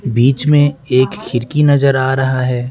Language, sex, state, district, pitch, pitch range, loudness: Hindi, male, Bihar, West Champaran, 130 Hz, 125-140 Hz, -14 LUFS